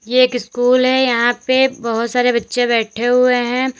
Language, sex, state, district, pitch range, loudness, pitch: Hindi, female, Uttar Pradesh, Lalitpur, 240-255 Hz, -15 LUFS, 245 Hz